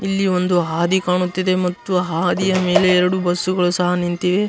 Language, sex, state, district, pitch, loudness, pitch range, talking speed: Kannada, male, Karnataka, Gulbarga, 180 Hz, -18 LUFS, 180-185 Hz, 160 wpm